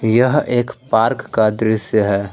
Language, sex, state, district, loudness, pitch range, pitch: Hindi, male, Jharkhand, Ranchi, -16 LUFS, 105-120 Hz, 110 Hz